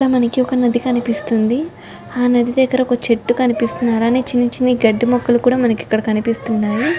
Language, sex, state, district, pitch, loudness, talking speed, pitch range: Telugu, female, Andhra Pradesh, Chittoor, 245 Hz, -16 LUFS, 155 wpm, 230-250 Hz